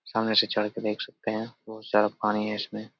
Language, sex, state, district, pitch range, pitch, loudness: Hindi, male, Bihar, Jamui, 105-110 Hz, 110 Hz, -27 LUFS